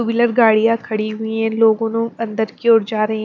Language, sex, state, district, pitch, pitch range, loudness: Hindi, female, Maharashtra, Mumbai Suburban, 225 Hz, 220-230 Hz, -17 LUFS